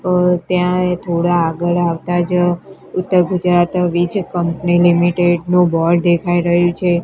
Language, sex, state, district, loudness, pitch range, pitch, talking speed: Gujarati, female, Gujarat, Gandhinagar, -15 LUFS, 175-180 Hz, 175 Hz, 135 wpm